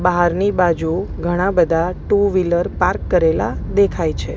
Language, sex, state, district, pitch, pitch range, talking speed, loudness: Gujarati, female, Gujarat, Gandhinagar, 180 Hz, 175-195 Hz, 135 wpm, -17 LUFS